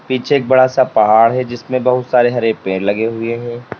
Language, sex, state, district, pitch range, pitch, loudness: Hindi, male, Uttar Pradesh, Lalitpur, 115-130 Hz, 120 Hz, -14 LUFS